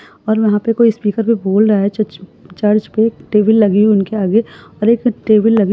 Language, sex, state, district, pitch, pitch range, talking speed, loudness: Hindi, female, Uttar Pradesh, Budaun, 215 Hz, 205-225 Hz, 250 wpm, -14 LUFS